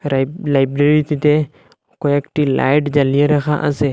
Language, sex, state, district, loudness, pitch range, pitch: Bengali, male, Assam, Hailakandi, -16 LUFS, 140-150 Hz, 145 Hz